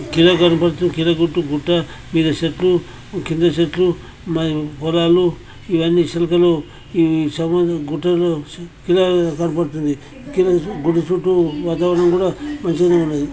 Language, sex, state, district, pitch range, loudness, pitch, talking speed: Telugu, male, Telangana, Karimnagar, 160-175 Hz, -17 LUFS, 170 Hz, 105 wpm